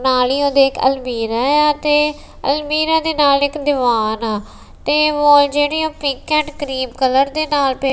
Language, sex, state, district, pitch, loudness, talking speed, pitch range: Punjabi, female, Punjab, Kapurthala, 285 Hz, -16 LUFS, 165 wpm, 265-300 Hz